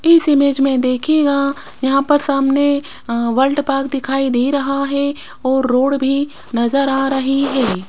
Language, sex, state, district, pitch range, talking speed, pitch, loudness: Hindi, female, Rajasthan, Jaipur, 265-280 Hz, 160 wpm, 275 Hz, -16 LUFS